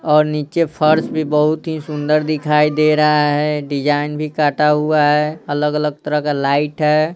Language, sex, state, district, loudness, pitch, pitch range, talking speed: Hindi, male, Bihar, Patna, -16 LUFS, 150 Hz, 150-155 Hz, 175 wpm